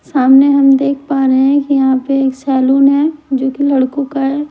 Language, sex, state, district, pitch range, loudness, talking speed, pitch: Hindi, male, Delhi, New Delhi, 265-280 Hz, -12 LUFS, 225 wpm, 275 Hz